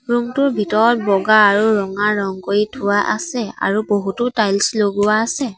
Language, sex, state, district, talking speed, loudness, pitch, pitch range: Assamese, female, Assam, Sonitpur, 160 wpm, -17 LUFS, 210 Hz, 205-235 Hz